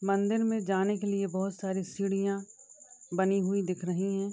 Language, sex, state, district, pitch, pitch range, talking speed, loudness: Hindi, female, Uttar Pradesh, Deoria, 195 Hz, 190-200 Hz, 180 wpm, -31 LUFS